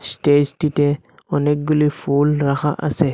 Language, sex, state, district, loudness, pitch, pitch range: Bengali, male, Assam, Hailakandi, -18 LUFS, 145 Hz, 140-150 Hz